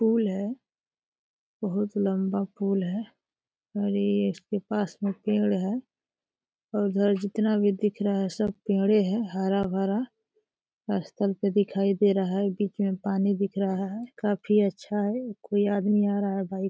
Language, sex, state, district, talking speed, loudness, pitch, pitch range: Hindi, female, Uttar Pradesh, Deoria, 160 wpm, -27 LUFS, 200 Hz, 195-210 Hz